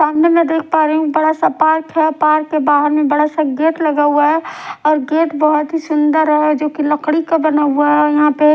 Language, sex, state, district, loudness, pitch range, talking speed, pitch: Hindi, female, Odisha, Sambalpur, -14 LUFS, 300-315 Hz, 240 wpm, 305 Hz